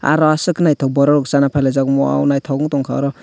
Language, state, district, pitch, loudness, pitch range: Kokborok, Tripura, West Tripura, 140 Hz, -15 LUFS, 135-150 Hz